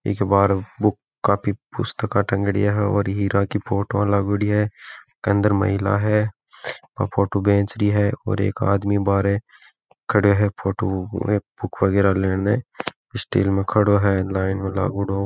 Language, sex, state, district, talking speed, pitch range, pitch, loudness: Marwari, male, Rajasthan, Nagaur, 155 wpm, 100-105 Hz, 100 Hz, -21 LUFS